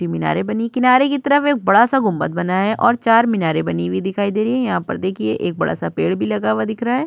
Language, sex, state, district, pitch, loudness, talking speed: Hindi, female, Uttar Pradesh, Budaun, 205 Hz, -17 LUFS, 265 wpm